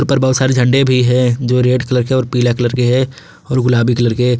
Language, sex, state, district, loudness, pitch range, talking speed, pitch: Hindi, male, Jharkhand, Garhwa, -14 LUFS, 125-130 Hz, 270 wpm, 125 Hz